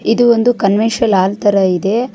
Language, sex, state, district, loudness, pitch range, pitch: Kannada, female, Karnataka, Bangalore, -13 LUFS, 195-235 Hz, 215 Hz